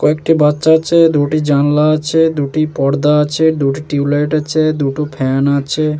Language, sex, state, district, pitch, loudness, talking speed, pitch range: Bengali, male, West Bengal, Jalpaiguri, 150 Hz, -13 LUFS, 160 wpm, 145-155 Hz